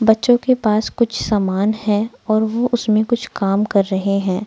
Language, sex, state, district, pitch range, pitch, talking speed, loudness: Hindi, female, Bihar, Araria, 200-230 Hz, 215 Hz, 190 wpm, -17 LUFS